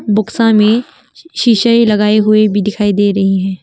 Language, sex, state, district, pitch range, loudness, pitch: Hindi, female, Arunachal Pradesh, Longding, 205-230 Hz, -11 LUFS, 215 Hz